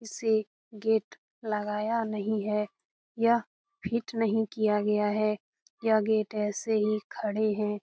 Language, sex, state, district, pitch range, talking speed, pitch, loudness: Hindi, female, Bihar, Jamui, 210-225 Hz, 130 wpm, 215 Hz, -29 LUFS